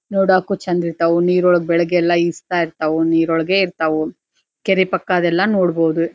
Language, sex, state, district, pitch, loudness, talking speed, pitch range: Kannada, female, Karnataka, Dharwad, 175 Hz, -17 LUFS, 115 wpm, 165-185 Hz